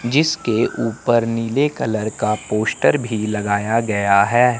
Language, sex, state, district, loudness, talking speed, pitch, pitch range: Hindi, male, Chandigarh, Chandigarh, -18 LUFS, 130 wpm, 115 Hz, 105-120 Hz